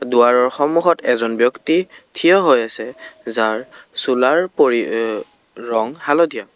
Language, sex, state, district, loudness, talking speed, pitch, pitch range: Assamese, male, Assam, Kamrup Metropolitan, -17 LUFS, 120 wpm, 120 Hz, 115-145 Hz